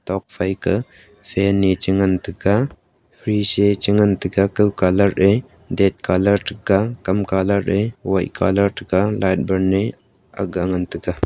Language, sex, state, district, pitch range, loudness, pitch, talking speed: Wancho, male, Arunachal Pradesh, Longding, 95-100 Hz, -19 LUFS, 100 Hz, 150 wpm